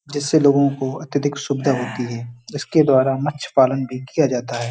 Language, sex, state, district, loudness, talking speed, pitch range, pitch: Hindi, male, Uttar Pradesh, Hamirpur, -19 LUFS, 180 wpm, 130-145 Hz, 135 Hz